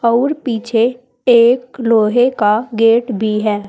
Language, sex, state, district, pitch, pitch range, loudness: Hindi, female, Uttar Pradesh, Saharanpur, 230 Hz, 220-245 Hz, -14 LUFS